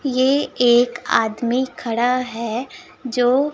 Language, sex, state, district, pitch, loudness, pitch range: Hindi, male, Chhattisgarh, Raipur, 250 Hz, -19 LUFS, 240-260 Hz